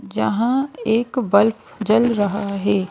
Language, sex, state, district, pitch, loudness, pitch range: Hindi, female, Madhya Pradesh, Bhopal, 215 Hz, -19 LUFS, 200-235 Hz